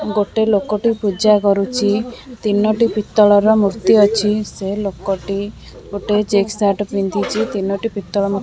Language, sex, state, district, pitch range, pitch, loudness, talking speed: Odia, female, Odisha, Khordha, 200-215 Hz, 205 Hz, -16 LUFS, 120 wpm